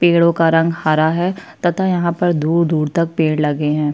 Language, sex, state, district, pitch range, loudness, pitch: Hindi, female, Chhattisgarh, Kabirdham, 155-175 Hz, -16 LUFS, 165 Hz